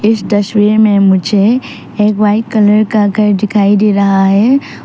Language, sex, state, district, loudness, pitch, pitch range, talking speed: Hindi, female, Arunachal Pradesh, Papum Pare, -10 LUFS, 210 Hz, 205-215 Hz, 160 wpm